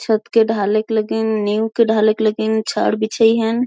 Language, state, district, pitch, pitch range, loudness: Kurukh, Chhattisgarh, Jashpur, 220 Hz, 215-225 Hz, -17 LUFS